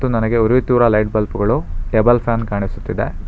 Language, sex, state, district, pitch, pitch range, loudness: Kannada, male, Karnataka, Bangalore, 110 Hz, 105-120 Hz, -17 LUFS